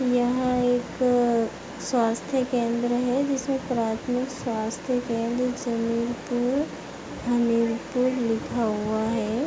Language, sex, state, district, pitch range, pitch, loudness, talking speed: Hindi, female, Uttar Pradesh, Hamirpur, 230-250 Hz, 245 Hz, -25 LUFS, 90 wpm